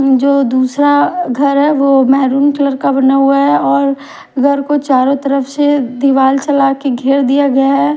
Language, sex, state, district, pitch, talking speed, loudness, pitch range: Hindi, female, Punjab, Kapurthala, 275 Hz, 180 wpm, -11 LUFS, 265-280 Hz